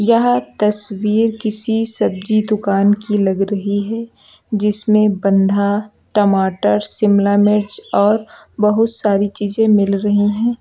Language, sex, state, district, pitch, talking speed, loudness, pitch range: Hindi, male, Uttar Pradesh, Lucknow, 210 Hz, 120 wpm, -14 LUFS, 200-215 Hz